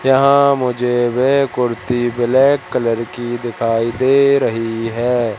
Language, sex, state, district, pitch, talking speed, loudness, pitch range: Hindi, male, Madhya Pradesh, Katni, 120 Hz, 120 wpm, -16 LUFS, 115-130 Hz